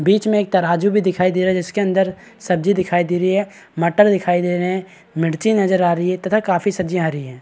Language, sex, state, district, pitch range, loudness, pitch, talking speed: Hindi, male, Bihar, Kishanganj, 175-195 Hz, -18 LUFS, 185 Hz, 260 wpm